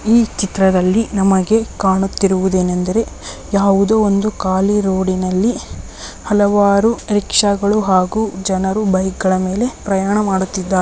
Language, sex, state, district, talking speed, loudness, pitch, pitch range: Kannada, female, Karnataka, Belgaum, 105 wpm, -15 LUFS, 195 Hz, 190-210 Hz